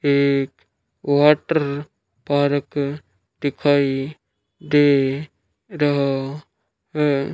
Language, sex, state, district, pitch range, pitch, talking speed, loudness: Hindi, male, Rajasthan, Bikaner, 135-145 Hz, 140 Hz, 55 wpm, -20 LUFS